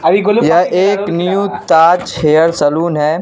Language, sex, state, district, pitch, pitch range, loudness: Hindi, male, Bihar, Katihar, 170 Hz, 155-185 Hz, -12 LUFS